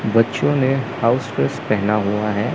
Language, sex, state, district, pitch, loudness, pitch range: Hindi, male, Chandigarh, Chandigarh, 105 Hz, -19 LUFS, 105-125 Hz